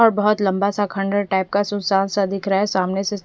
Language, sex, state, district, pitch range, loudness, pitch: Hindi, female, Punjab, Fazilka, 195-205 Hz, -20 LUFS, 200 Hz